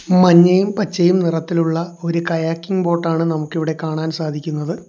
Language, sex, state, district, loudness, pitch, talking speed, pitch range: Malayalam, male, Kerala, Kollam, -17 LUFS, 165 Hz, 110 wpm, 160-175 Hz